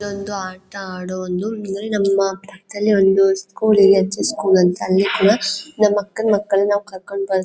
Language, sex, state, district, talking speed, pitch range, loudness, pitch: Kannada, female, Karnataka, Chamarajanagar, 170 wpm, 190-205 Hz, -18 LUFS, 195 Hz